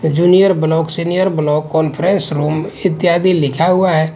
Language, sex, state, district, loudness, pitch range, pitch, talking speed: Hindi, male, Punjab, Pathankot, -14 LUFS, 155-185 Hz, 165 Hz, 145 wpm